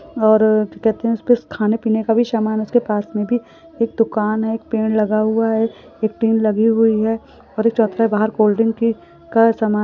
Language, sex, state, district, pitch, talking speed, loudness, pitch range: Hindi, female, Rajasthan, Churu, 225 Hz, 190 wpm, -17 LUFS, 215-225 Hz